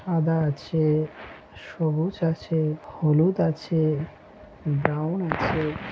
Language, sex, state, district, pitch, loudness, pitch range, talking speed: Bengali, male, West Bengal, Malda, 155 Hz, -25 LUFS, 150-165 Hz, 80 wpm